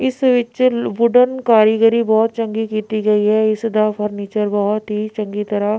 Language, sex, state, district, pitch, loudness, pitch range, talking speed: Punjabi, female, Punjab, Pathankot, 215 Hz, -16 LUFS, 210-235 Hz, 175 wpm